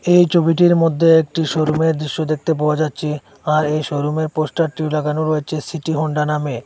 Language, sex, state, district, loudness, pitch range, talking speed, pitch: Bengali, male, Assam, Hailakandi, -17 LUFS, 150-160 Hz, 160 wpm, 155 Hz